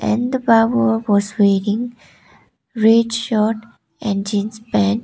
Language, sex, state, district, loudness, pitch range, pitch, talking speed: English, female, Sikkim, Gangtok, -17 LUFS, 205-230 Hz, 220 Hz, 95 wpm